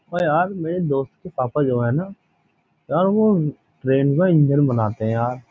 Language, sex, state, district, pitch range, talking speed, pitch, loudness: Hindi, male, Uttar Pradesh, Jyotiba Phule Nagar, 130-175 Hz, 195 wpm, 145 Hz, -20 LUFS